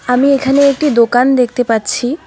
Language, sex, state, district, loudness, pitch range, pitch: Bengali, female, West Bengal, Alipurduar, -12 LUFS, 245-280 Hz, 255 Hz